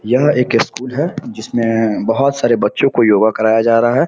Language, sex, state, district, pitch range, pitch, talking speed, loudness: Hindi, male, Bihar, Samastipur, 110-125 Hz, 115 Hz, 205 wpm, -14 LUFS